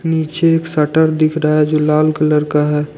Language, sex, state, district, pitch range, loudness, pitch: Hindi, male, Jharkhand, Deoghar, 150-160 Hz, -14 LUFS, 155 Hz